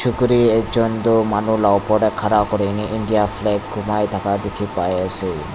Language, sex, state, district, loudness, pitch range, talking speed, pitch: Nagamese, male, Nagaland, Dimapur, -18 LUFS, 100-110 Hz, 150 wpm, 105 Hz